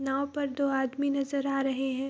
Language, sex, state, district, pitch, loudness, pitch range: Hindi, female, Bihar, Saharsa, 275 Hz, -30 LUFS, 270-280 Hz